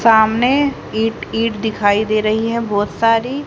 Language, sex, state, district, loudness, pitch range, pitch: Hindi, female, Haryana, Charkhi Dadri, -16 LUFS, 215-230 Hz, 225 Hz